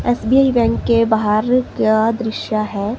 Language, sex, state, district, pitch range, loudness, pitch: Hindi, female, Himachal Pradesh, Shimla, 215-245 Hz, -16 LUFS, 225 Hz